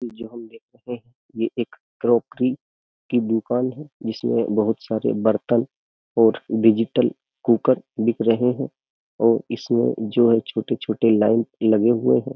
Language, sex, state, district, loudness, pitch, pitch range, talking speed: Hindi, male, Uttar Pradesh, Jyotiba Phule Nagar, -21 LUFS, 115 Hz, 110-120 Hz, 130 wpm